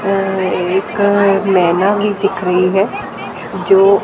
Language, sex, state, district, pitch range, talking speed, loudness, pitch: Hindi, female, Haryana, Jhajjar, 190-200 Hz, 120 wpm, -14 LUFS, 195 Hz